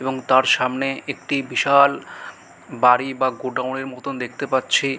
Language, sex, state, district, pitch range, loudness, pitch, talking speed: Bengali, male, West Bengal, Malda, 130-135 Hz, -20 LUFS, 130 Hz, 145 wpm